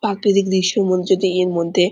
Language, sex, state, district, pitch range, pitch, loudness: Bengali, female, West Bengal, Purulia, 180-200 Hz, 190 Hz, -17 LUFS